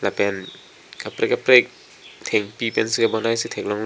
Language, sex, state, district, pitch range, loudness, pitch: Karbi, male, Assam, Karbi Anglong, 105-115 Hz, -20 LUFS, 115 Hz